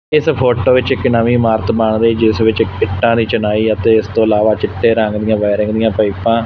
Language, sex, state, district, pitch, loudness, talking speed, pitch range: Punjabi, male, Punjab, Fazilka, 110 Hz, -13 LUFS, 225 wpm, 110-115 Hz